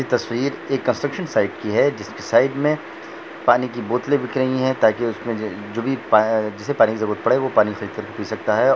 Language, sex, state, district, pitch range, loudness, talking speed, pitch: Hindi, male, Jharkhand, Jamtara, 110-135 Hz, -20 LUFS, 205 wpm, 125 Hz